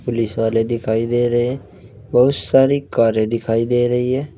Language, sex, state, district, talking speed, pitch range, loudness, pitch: Hindi, male, Uttar Pradesh, Saharanpur, 180 wpm, 115-125 Hz, -17 LUFS, 120 Hz